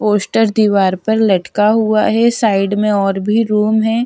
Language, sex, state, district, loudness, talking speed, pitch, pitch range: Hindi, female, Bihar, Patna, -14 LUFS, 175 wpm, 215 Hz, 200-220 Hz